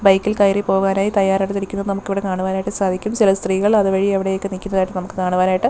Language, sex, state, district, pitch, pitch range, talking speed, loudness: Malayalam, female, Kerala, Thiruvananthapuram, 195 Hz, 190-200 Hz, 145 wpm, -18 LUFS